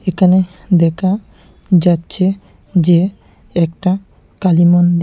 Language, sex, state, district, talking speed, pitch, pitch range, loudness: Bengali, male, Tripura, Unakoti, 85 wpm, 180 Hz, 175-190 Hz, -14 LUFS